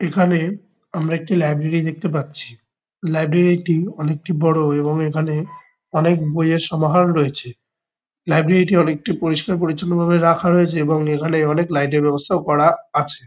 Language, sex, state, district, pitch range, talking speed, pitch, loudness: Bengali, male, West Bengal, Kolkata, 155-175 Hz, 135 wpm, 165 Hz, -18 LUFS